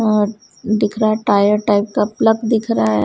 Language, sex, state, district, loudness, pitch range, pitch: Hindi, female, Punjab, Kapurthala, -16 LUFS, 205-220 Hz, 215 Hz